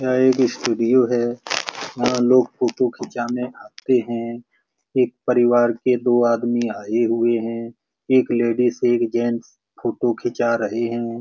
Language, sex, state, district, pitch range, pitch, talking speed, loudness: Hindi, male, Bihar, Lakhisarai, 115-125 Hz, 120 Hz, 145 wpm, -20 LUFS